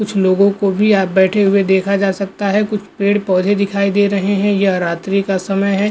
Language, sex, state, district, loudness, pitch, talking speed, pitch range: Hindi, male, Goa, North and South Goa, -15 LUFS, 200 Hz, 235 wpm, 195-200 Hz